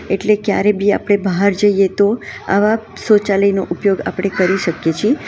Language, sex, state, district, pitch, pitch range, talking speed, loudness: Gujarati, female, Gujarat, Valsad, 200 Hz, 195-205 Hz, 160 wpm, -15 LUFS